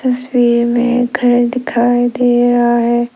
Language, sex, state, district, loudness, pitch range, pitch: Hindi, female, Arunachal Pradesh, Lower Dibang Valley, -13 LUFS, 240-245 Hz, 245 Hz